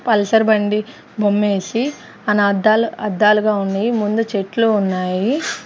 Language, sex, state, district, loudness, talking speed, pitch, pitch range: Telugu, female, Andhra Pradesh, Sri Satya Sai, -17 LUFS, 115 wpm, 210 Hz, 205-225 Hz